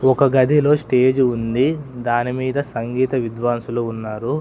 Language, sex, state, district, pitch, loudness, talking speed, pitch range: Telugu, male, Telangana, Hyderabad, 125 Hz, -19 LUFS, 120 wpm, 120-135 Hz